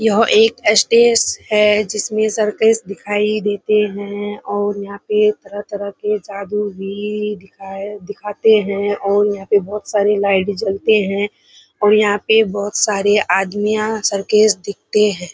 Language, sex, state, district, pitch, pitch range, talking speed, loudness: Hindi, female, Bihar, Kishanganj, 205 Hz, 200-215 Hz, 140 wpm, -16 LUFS